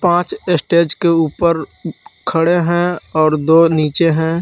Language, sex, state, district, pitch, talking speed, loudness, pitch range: Hindi, male, Jharkhand, Palamu, 165 Hz, 135 wpm, -14 LUFS, 160-175 Hz